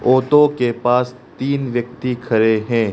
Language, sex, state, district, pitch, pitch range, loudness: Hindi, male, Arunachal Pradesh, Lower Dibang Valley, 125 Hz, 120-130 Hz, -17 LUFS